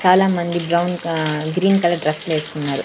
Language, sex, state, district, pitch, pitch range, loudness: Telugu, female, Andhra Pradesh, Sri Satya Sai, 170 Hz, 155-180 Hz, -19 LUFS